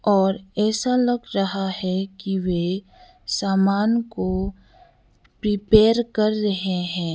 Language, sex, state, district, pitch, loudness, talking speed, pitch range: Hindi, female, Sikkim, Gangtok, 195 Hz, -22 LUFS, 110 wpm, 185-215 Hz